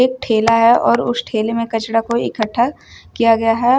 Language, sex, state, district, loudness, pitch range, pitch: Hindi, female, Uttar Pradesh, Shamli, -16 LUFS, 225-240 Hz, 230 Hz